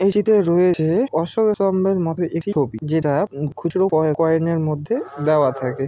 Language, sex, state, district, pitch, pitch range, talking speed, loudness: Bengali, male, West Bengal, Malda, 165 Hz, 150-190 Hz, 145 wpm, -19 LUFS